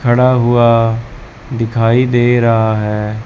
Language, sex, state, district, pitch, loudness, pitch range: Hindi, male, Chandigarh, Chandigarh, 115 Hz, -12 LUFS, 110-120 Hz